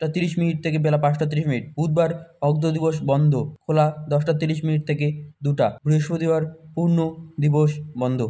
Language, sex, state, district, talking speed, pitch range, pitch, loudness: Bengali, male, West Bengal, Malda, 135 wpm, 150-160 Hz, 155 Hz, -22 LUFS